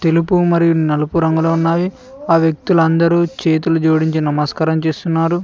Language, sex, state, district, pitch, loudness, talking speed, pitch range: Telugu, male, Telangana, Mahabubabad, 165 Hz, -15 LUFS, 130 wpm, 160-170 Hz